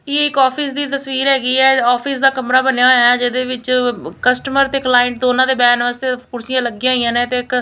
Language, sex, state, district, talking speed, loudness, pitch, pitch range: Punjabi, female, Punjab, Kapurthala, 230 wpm, -14 LUFS, 255 Hz, 245-265 Hz